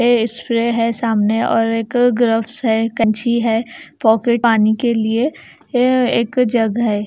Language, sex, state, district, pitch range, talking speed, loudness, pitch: Hindi, female, Bihar, Katihar, 225-240 Hz, 145 wpm, -16 LUFS, 230 Hz